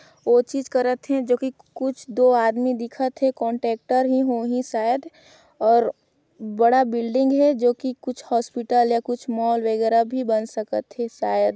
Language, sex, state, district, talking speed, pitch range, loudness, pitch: Chhattisgarhi, female, Chhattisgarh, Sarguja, 160 wpm, 230-260 Hz, -22 LUFS, 245 Hz